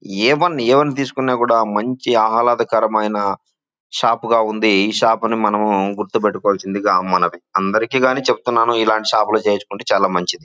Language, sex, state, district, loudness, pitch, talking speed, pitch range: Telugu, male, Andhra Pradesh, Chittoor, -17 LUFS, 110 Hz, 140 wpm, 105-115 Hz